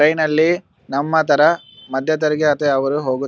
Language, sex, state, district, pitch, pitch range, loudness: Kannada, male, Karnataka, Bellary, 150 Hz, 140-155 Hz, -17 LUFS